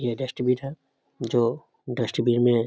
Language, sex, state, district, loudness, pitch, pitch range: Hindi, male, Bihar, Samastipur, -25 LUFS, 125 Hz, 120-135 Hz